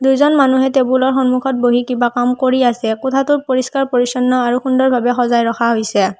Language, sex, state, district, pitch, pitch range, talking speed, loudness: Assamese, female, Assam, Hailakandi, 255 Hz, 245-265 Hz, 155 wpm, -14 LUFS